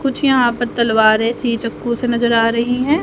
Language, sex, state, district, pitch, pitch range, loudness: Hindi, female, Haryana, Rohtak, 235 Hz, 230-245 Hz, -16 LUFS